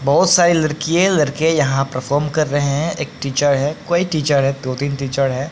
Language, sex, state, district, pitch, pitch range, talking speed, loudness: Hindi, male, Bihar, Patna, 145 Hz, 135-160 Hz, 195 wpm, -17 LUFS